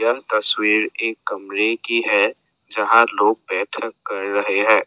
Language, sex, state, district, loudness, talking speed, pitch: Hindi, male, Assam, Sonitpur, -19 LUFS, 135 wpm, 120 Hz